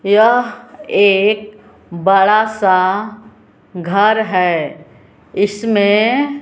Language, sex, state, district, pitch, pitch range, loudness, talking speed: Hindi, female, Bihar, West Champaran, 205 Hz, 180-215 Hz, -14 LUFS, 65 wpm